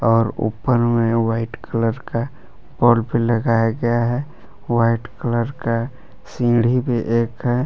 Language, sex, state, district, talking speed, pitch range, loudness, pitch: Hindi, male, Jharkhand, Palamu, 140 wpm, 115-120 Hz, -19 LUFS, 115 Hz